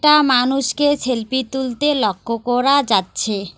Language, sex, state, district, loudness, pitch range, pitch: Bengali, female, West Bengal, Alipurduar, -17 LUFS, 230-280 Hz, 260 Hz